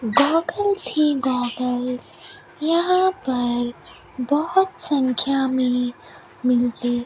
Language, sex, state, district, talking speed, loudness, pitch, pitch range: Hindi, female, Rajasthan, Bikaner, 85 wpm, -21 LUFS, 260 Hz, 245-315 Hz